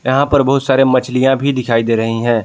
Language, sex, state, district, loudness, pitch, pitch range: Hindi, male, Jharkhand, Palamu, -14 LUFS, 130 Hz, 115-135 Hz